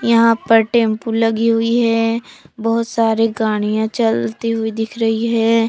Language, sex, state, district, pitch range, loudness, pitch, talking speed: Hindi, female, Jharkhand, Palamu, 225-230 Hz, -16 LUFS, 225 Hz, 145 wpm